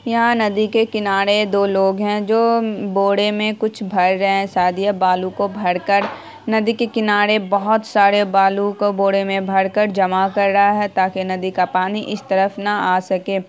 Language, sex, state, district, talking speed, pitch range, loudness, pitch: Hindi, female, Bihar, Saharsa, 200 wpm, 195-210 Hz, -17 LUFS, 200 Hz